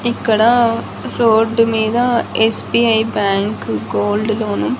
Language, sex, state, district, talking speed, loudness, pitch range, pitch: Telugu, female, Andhra Pradesh, Annamaya, 100 wpm, -15 LUFS, 215-235 Hz, 225 Hz